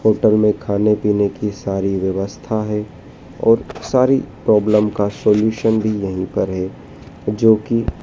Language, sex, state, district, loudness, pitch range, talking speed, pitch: Hindi, male, Madhya Pradesh, Dhar, -18 LUFS, 100-110 Hz, 140 wpm, 105 Hz